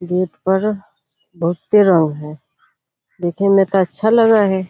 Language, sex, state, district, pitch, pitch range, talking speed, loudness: Hindi, female, Bihar, Kishanganj, 190 Hz, 175-200 Hz, 140 wpm, -15 LUFS